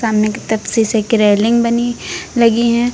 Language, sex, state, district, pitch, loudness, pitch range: Hindi, female, Uttar Pradesh, Lucknow, 230 Hz, -14 LUFS, 220-235 Hz